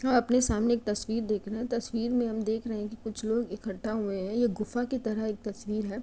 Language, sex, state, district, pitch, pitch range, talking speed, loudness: Hindi, female, Uttar Pradesh, Jyotiba Phule Nagar, 220 Hz, 210-235 Hz, 270 wpm, -30 LUFS